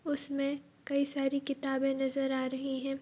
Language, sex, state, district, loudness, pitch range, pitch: Hindi, female, Bihar, Saharsa, -33 LUFS, 270-280 Hz, 275 Hz